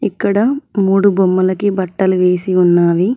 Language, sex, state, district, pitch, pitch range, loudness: Telugu, female, Telangana, Mahabubabad, 190 Hz, 180-200 Hz, -14 LUFS